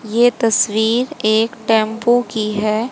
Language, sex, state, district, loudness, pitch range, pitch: Hindi, female, Haryana, Charkhi Dadri, -16 LUFS, 220-240 Hz, 225 Hz